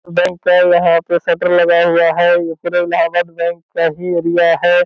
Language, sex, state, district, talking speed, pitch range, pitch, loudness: Hindi, male, Bihar, Purnia, 195 wpm, 170-175 Hz, 175 Hz, -13 LUFS